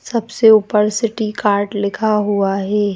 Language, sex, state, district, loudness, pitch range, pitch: Hindi, female, Madhya Pradesh, Bhopal, -16 LUFS, 205-220 Hz, 210 Hz